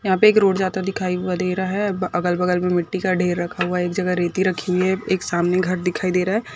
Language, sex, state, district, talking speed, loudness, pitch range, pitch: Hindi, female, Maharashtra, Sindhudurg, 300 wpm, -20 LUFS, 180-190 Hz, 185 Hz